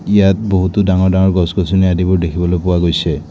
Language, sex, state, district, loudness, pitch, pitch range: Assamese, male, Assam, Kamrup Metropolitan, -14 LUFS, 95 Hz, 90-95 Hz